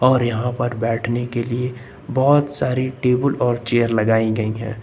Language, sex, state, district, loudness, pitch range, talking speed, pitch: Hindi, male, Uttar Pradesh, Lucknow, -20 LUFS, 115-130 Hz, 175 wpm, 120 Hz